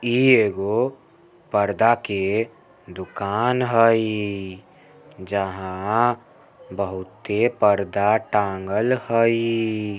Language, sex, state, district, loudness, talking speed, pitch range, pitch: Maithili, male, Bihar, Samastipur, -21 LUFS, 65 wpm, 100-120 Hz, 105 Hz